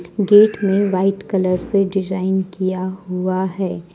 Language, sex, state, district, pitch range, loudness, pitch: Hindi, female, Jharkhand, Ranchi, 185-195 Hz, -18 LUFS, 190 Hz